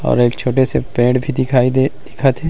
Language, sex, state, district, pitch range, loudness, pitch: Chhattisgarhi, male, Chhattisgarh, Rajnandgaon, 125-135 Hz, -15 LUFS, 130 Hz